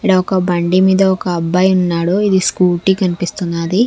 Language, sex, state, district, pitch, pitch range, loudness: Telugu, female, Andhra Pradesh, Sri Satya Sai, 185 Hz, 175-190 Hz, -14 LUFS